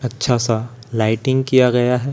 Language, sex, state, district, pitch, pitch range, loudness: Hindi, male, Chhattisgarh, Raipur, 125 Hz, 120-130 Hz, -17 LUFS